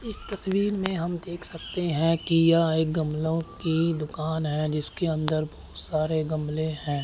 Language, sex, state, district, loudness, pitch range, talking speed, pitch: Hindi, male, Chandigarh, Chandigarh, -26 LUFS, 155-170 Hz, 160 wpm, 160 Hz